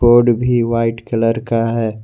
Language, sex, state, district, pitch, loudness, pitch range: Hindi, male, Jharkhand, Garhwa, 115 Hz, -16 LUFS, 115-120 Hz